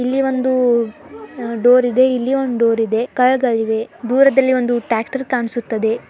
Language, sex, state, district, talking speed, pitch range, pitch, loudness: Kannada, male, Karnataka, Dharwad, 140 wpm, 230-260 Hz, 245 Hz, -16 LUFS